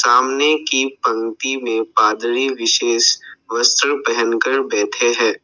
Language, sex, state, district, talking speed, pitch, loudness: Hindi, male, Assam, Sonitpur, 120 wpm, 135 Hz, -16 LUFS